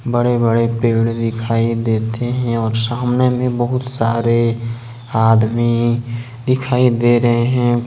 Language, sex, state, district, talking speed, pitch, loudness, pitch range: Hindi, male, Jharkhand, Ranchi, 120 wpm, 120 Hz, -16 LUFS, 115-120 Hz